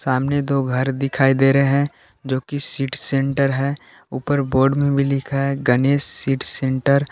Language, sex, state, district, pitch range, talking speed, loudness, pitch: Hindi, male, Jharkhand, Palamu, 135-140 Hz, 175 wpm, -19 LUFS, 135 Hz